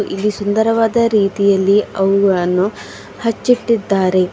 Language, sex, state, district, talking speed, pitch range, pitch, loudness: Kannada, female, Karnataka, Bidar, 70 wpm, 195-225 Hz, 205 Hz, -15 LUFS